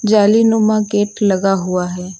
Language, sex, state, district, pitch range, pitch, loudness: Hindi, female, Uttar Pradesh, Lucknow, 185-215 Hz, 205 Hz, -15 LUFS